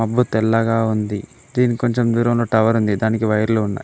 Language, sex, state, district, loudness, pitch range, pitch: Telugu, male, Telangana, Mahabubabad, -18 LUFS, 110-120 Hz, 115 Hz